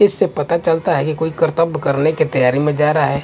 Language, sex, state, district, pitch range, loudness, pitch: Hindi, male, Punjab, Kapurthala, 150-165 Hz, -16 LUFS, 155 Hz